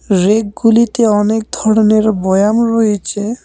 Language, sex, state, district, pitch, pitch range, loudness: Bengali, male, West Bengal, Cooch Behar, 215 Hz, 205-225 Hz, -12 LUFS